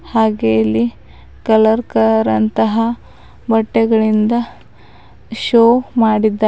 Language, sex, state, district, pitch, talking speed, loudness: Kannada, female, Karnataka, Bidar, 220 Hz, 75 wpm, -14 LUFS